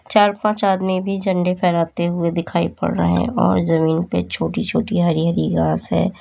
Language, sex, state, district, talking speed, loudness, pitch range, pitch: Hindi, female, Uttar Pradesh, Lalitpur, 195 wpm, -19 LUFS, 165-190 Hz, 170 Hz